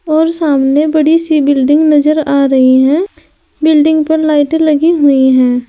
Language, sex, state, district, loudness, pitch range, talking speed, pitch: Hindi, female, Uttar Pradesh, Saharanpur, -10 LUFS, 280-315 Hz, 160 wpm, 305 Hz